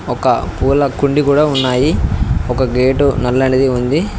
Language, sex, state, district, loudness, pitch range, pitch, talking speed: Telugu, male, Telangana, Mahabubabad, -14 LUFS, 125-140 Hz, 130 Hz, 130 wpm